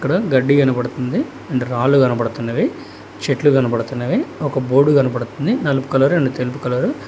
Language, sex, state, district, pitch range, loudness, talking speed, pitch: Telugu, male, Telangana, Hyderabad, 125-140 Hz, -17 LUFS, 145 wpm, 135 Hz